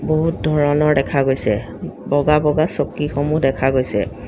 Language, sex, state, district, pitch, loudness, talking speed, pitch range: Assamese, female, Assam, Sonitpur, 145 Hz, -18 LUFS, 125 wpm, 130-150 Hz